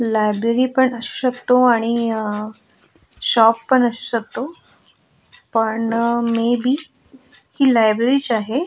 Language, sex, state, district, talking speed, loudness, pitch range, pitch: Marathi, female, Goa, North and South Goa, 90 wpm, -18 LUFS, 225-255 Hz, 235 Hz